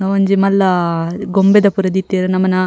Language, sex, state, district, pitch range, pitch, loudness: Tulu, female, Karnataka, Dakshina Kannada, 185-195 Hz, 190 Hz, -14 LUFS